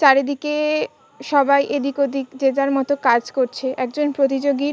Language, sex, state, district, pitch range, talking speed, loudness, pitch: Bengali, female, West Bengal, Kolkata, 270-285 Hz, 150 wpm, -19 LUFS, 275 Hz